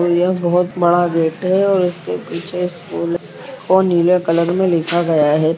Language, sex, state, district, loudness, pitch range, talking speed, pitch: Hindi, male, Bihar, Purnia, -16 LUFS, 170-180 Hz, 185 wpm, 175 Hz